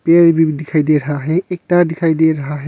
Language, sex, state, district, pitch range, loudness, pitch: Hindi, male, Arunachal Pradesh, Longding, 155-170 Hz, -14 LUFS, 160 Hz